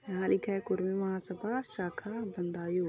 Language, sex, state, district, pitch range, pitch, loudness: Hindi, female, Uttar Pradesh, Budaun, 180-210 Hz, 190 Hz, -35 LUFS